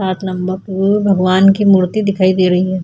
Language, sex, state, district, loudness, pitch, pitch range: Hindi, female, Bihar, Vaishali, -13 LUFS, 190 Hz, 185-195 Hz